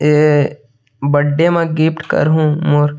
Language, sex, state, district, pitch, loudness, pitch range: Chhattisgarhi, male, Chhattisgarh, Sarguja, 150 Hz, -14 LUFS, 145-155 Hz